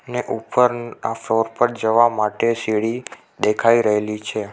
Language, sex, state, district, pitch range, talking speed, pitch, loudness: Gujarati, male, Gujarat, Navsari, 105-120 Hz, 145 wpm, 115 Hz, -19 LUFS